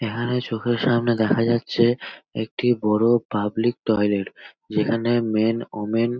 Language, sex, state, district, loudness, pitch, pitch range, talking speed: Bengali, male, West Bengal, North 24 Parganas, -22 LUFS, 115 Hz, 110-120 Hz, 125 wpm